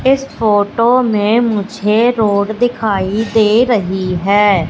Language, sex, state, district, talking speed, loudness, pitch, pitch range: Hindi, female, Madhya Pradesh, Katni, 115 wpm, -13 LUFS, 215 Hz, 205-235 Hz